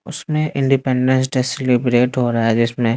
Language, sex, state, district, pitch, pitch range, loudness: Hindi, male, Bihar, West Champaran, 125 Hz, 120-135 Hz, -17 LUFS